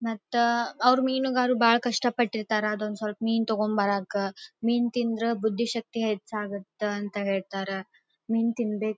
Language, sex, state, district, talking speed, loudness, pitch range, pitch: Kannada, female, Karnataka, Dharwad, 125 wpm, -27 LUFS, 210-235 Hz, 225 Hz